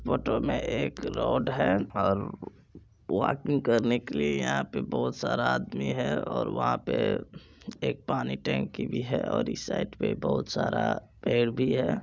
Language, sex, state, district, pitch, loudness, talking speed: Maithili, male, Bihar, Supaul, 100 Hz, -29 LUFS, 165 wpm